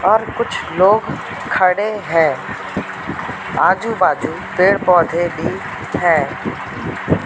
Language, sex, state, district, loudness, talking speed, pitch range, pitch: Hindi, male, Madhya Pradesh, Katni, -17 LUFS, 75 wpm, 170-205 Hz, 180 Hz